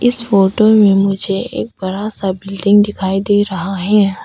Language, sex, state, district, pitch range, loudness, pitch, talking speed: Hindi, female, Arunachal Pradesh, Papum Pare, 190-210 Hz, -14 LUFS, 195 Hz, 155 wpm